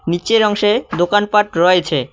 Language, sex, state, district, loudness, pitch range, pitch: Bengali, male, West Bengal, Cooch Behar, -15 LUFS, 175-210 Hz, 205 Hz